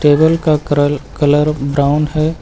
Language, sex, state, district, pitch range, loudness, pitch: Hindi, male, Uttar Pradesh, Lucknow, 145-155 Hz, -14 LUFS, 150 Hz